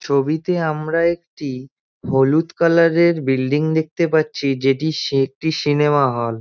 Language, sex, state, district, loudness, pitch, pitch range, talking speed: Bengali, male, West Bengal, Dakshin Dinajpur, -18 LUFS, 155 Hz, 135-165 Hz, 140 wpm